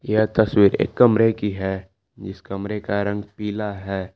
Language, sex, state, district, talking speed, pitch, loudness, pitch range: Hindi, male, Jharkhand, Palamu, 175 wpm, 100 Hz, -21 LUFS, 95-105 Hz